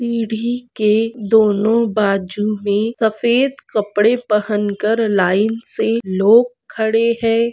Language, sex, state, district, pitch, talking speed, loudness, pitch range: Hindi, female, Maharashtra, Aurangabad, 220 Hz, 110 wpm, -17 LUFS, 210-230 Hz